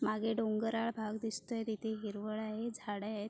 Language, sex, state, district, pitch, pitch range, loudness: Marathi, female, Maharashtra, Sindhudurg, 220 Hz, 215-225 Hz, -38 LUFS